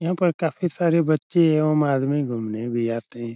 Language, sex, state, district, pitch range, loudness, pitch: Hindi, male, Uttar Pradesh, Etah, 120-165 Hz, -22 LUFS, 155 Hz